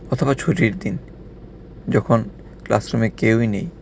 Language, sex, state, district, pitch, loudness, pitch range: Bengali, male, Tripura, West Tripura, 115 Hz, -20 LUFS, 100-130 Hz